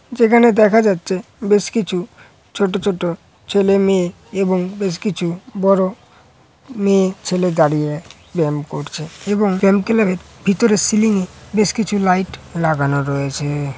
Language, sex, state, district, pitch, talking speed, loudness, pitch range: Bengali, female, West Bengal, Malda, 195 Hz, 130 wpm, -17 LUFS, 170-205 Hz